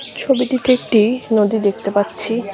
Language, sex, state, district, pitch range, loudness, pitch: Bengali, female, West Bengal, Malda, 205-250 Hz, -17 LUFS, 220 Hz